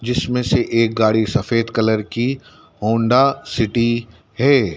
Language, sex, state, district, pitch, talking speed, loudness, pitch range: Hindi, male, Madhya Pradesh, Dhar, 115 Hz, 125 wpm, -18 LUFS, 110-125 Hz